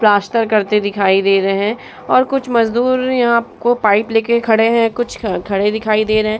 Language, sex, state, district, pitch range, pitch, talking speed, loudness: Hindi, female, Bihar, Vaishali, 210-235 Hz, 220 Hz, 195 wpm, -15 LUFS